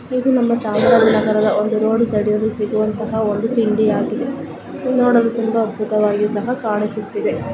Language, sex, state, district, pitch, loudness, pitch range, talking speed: Kannada, female, Karnataka, Chamarajanagar, 220 Hz, -17 LUFS, 215-235 Hz, 120 wpm